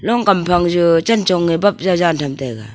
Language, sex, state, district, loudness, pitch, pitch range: Wancho, female, Arunachal Pradesh, Longding, -15 LUFS, 175 Hz, 165-195 Hz